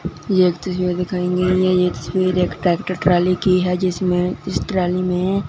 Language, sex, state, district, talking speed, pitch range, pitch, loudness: Hindi, male, Punjab, Fazilka, 185 wpm, 180-185 Hz, 180 Hz, -19 LUFS